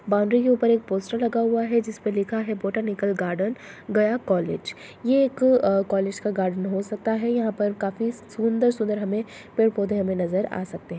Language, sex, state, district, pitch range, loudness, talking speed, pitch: Hindi, female, Bihar, Lakhisarai, 195-230 Hz, -24 LUFS, 185 wpm, 215 Hz